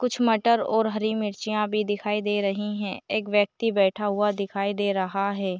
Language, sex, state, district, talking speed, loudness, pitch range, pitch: Hindi, female, Chhattisgarh, Bilaspur, 195 wpm, -25 LUFS, 200-215 Hz, 210 Hz